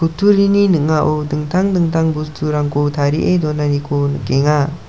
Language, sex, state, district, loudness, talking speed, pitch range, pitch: Garo, male, Meghalaya, South Garo Hills, -16 LUFS, 100 wpm, 145-165 Hz, 150 Hz